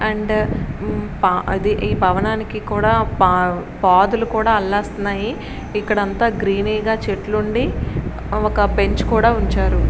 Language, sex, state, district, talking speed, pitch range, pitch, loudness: Telugu, female, Andhra Pradesh, Srikakulam, 105 wpm, 195-220 Hz, 210 Hz, -18 LUFS